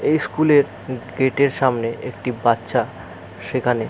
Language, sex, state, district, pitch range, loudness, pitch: Bengali, male, West Bengal, Jalpaiguri, 115-135 Hz, -20 LUFS, 125 Hz